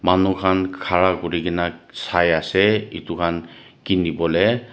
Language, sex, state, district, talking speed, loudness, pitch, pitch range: Nagamese, male, Nagaland, Dimapur, 100 wpm, -20 LUFS, 90 Hz, 85-95 Hz